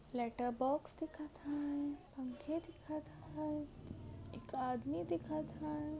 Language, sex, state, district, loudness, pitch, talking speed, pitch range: Marathi, female, Maharashtra, Sindhudurg, -43 LUFS, 290 Hz, 110 wpm, 260-305 Hz